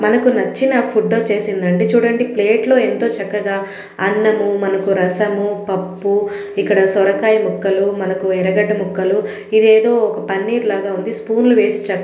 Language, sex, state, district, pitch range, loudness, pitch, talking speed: Telugu, female, Telangana, Karimnagar, 195-220 Hz, -16 LUFS, 205 Hz, 140 wpm